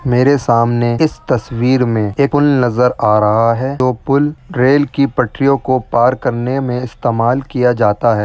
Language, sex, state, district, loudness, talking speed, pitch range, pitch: Hindi, male, Rajasthan, Churu, -14 LUFS, 165 wpm, 115-140 Hz, 125 Hz